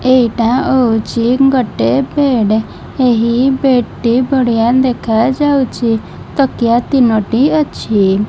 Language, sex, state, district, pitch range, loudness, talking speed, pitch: Odia, female, Odisha, Malkangiri, 230-265 Hz, -13 LUFS, 85 wpm, 245 Hz